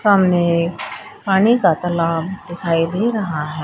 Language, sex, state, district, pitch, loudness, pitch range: Hindi, female, Haryana, Charkhi Dadri, 175 Hz, -17 LUFS, 165-195 Hz